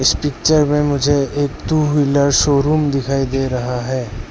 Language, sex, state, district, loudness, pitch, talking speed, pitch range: Hindi, male, Arunachal Pradesh, Lower Dibang Valley, -16 LUFS, 140 Hz, 165 wpm, 130-145 Hz